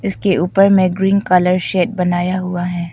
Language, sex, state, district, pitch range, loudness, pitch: Hindi, female, Arunachal Pradesh, Papum Pare, 180-195 Hz, -15 LUFS, 185 Hz